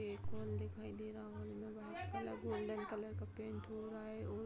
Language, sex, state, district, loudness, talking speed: Hindi, female, Uttar Pradesh, Budaun, -47 LUFS, 240 wpm